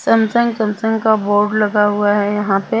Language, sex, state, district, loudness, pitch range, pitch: Hindi, female, Punjab, Kapurthala, -15 LUFS, 205-225 Hz, 210 Hz